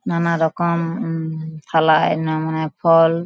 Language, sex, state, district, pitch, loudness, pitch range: Bengali, female, West Bengal, Paschim Medinipur, 160 Hz, -19 LUFS, 160-170 Hz